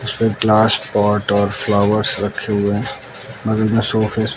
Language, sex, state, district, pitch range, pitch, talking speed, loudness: Hindi, male, Bihar, West Champaran, 105-110 Hz, 105 Hz, 150 wpm, -17 LUFS